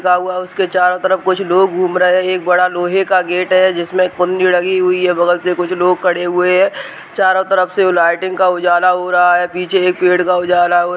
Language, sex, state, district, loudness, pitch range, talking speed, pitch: Hindi, male, Uttar Pradesh, Hamirpur, -13 LUFS, 180-185 Hz, 245 wpm, 180 Hz